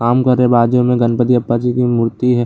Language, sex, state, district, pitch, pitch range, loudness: Hindi, male, Bihar, Lakhisarai, 125 Hz, 120-125 Hz, -14 LUFS